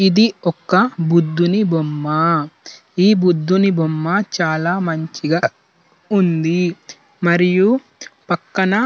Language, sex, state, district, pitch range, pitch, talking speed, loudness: Telugu, male, Telangana, Nalgonda, 165-195 Hz, 175 Hz, 90 wpm, -17 LUFS